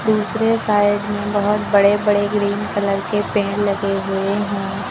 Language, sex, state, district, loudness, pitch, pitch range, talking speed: Hindi, female, Uttar Pradesh, Lucknow, -18 LUFS, 205 Hz, 200-210 Hz, 160 wpm